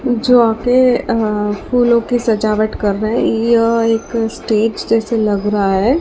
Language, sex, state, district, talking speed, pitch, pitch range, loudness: Hindi, female, Karnataka, Bangalore, 150 wpm, 225 Hz, 215-240 Hz, -14 LUFS